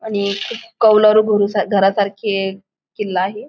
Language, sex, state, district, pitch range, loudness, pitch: Marathi, female, Maharashtra, Aurangabad, 195-215 Hz, -16 LUFS, 205 Hz